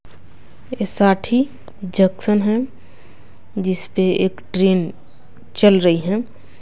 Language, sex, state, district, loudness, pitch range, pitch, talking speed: Hindi, female, Bihar, West Champaran, -18 LUFS, 185-210 Hz, 195 Hz, 90 wpm